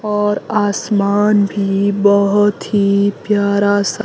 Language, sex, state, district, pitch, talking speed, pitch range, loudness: Hindi, female, Himachal Pradesh, Shimla, 205 Hz, 105 wpm, 200-205 Hz, -15 LUFS